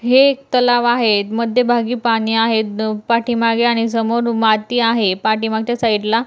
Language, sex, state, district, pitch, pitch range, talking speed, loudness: Marathi, female, Maharashtra, Dhule, 230 Hz, 220-240 Hz, 145 wpm, -16 LUFS